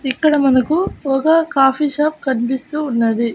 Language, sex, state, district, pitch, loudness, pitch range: Telugu, female, Andhra Pradesh, Annamaya, 275 Hz, -16 LUFS, 260-300 Hz